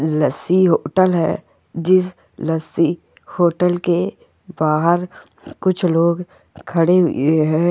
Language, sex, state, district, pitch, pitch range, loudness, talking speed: Hindi, female, Goa, North and South Goa, 170 Hz, 160-180 Hz, -17 LUFS, 100 wpm